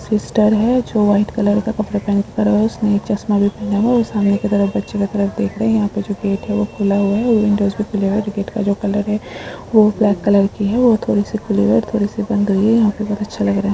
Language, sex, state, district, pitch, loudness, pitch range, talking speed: Hindi, female, Jharkhand, Sahebganj, 205 Hz, -17 LUFS, 200-215 Hz, 300 wpm